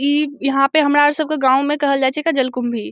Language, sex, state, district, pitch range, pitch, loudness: Maithili, female, Bihar, Samastipur, 265-295 Hz, 280 Hz, -16 LUFS